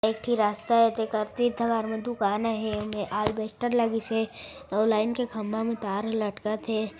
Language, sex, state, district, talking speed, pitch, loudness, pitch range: Chhattisgarhi, female, Chhattisgarh, Raigarh, 190 wpm, 220 Hz, -27 LUFS, 215-230 Hz